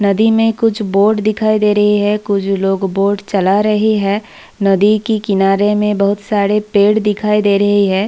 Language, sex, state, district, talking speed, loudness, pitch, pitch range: Hindi, female, Bihar, Saharsa, 195 wpm, -13 LUFS, 205 Hz, 200-210 Hz